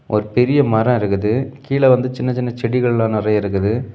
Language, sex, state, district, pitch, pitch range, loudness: Tamil, male, Tamil Nadu, Kanyakumari, 120 Hz, 105-125 Hz, -17 LUFS